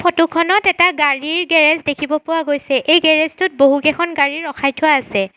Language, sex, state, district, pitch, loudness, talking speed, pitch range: Assamese, female, Assam, Sonitpur, 310 Hz, -14 LUFS, 155 wpm, 285-335 Hz